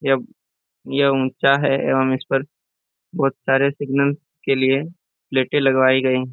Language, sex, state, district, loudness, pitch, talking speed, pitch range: Hindi, male, Jharkhand, Jamtara, -19 LUFS, 135 Hz, 140 wpm, 130-140 Hz